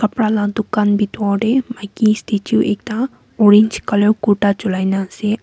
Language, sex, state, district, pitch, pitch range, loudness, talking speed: Nagamese, female, Nagaland, Kohima, 210 Hz, 205-220 Hz, -16 LUFS, 155 wpm